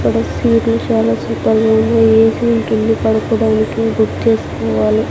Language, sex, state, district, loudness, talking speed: Telugu, female, Andhra Pradesh, Sri Satya Sai, -14 LUFS, 120 wpm